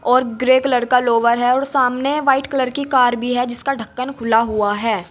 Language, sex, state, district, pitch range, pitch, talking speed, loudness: Hindi, female, Uttar Pradesh, Saharanpur, 235-265 Hz, 250 Hz, 220 wpm, -17 LUFS